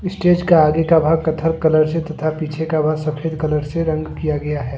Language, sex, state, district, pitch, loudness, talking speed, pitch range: Hindi, male, Jharkhand, Deoghar, 160 Hz, -18 LUFS, 240 wpm, 155-165 Hz